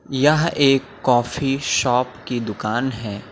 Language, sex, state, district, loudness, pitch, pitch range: Hindi, male, Uttar Pradesh, Lucknow, -20 LUFS, 125 Hz, 120-135 Hz